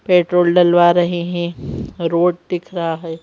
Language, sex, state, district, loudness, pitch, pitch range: Hindi, female, Madhya Pradesh, Bhopal, -16 LUFS, 175 Hz, 170-175 Hz